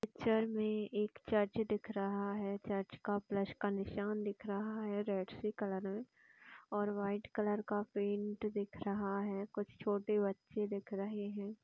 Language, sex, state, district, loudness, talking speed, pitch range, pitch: Hindi, female, Uttar Pradesh, Jyotiba Phule Nagar, -39 LUFS, 180 wpm, 200-210 Hz, 205 Hz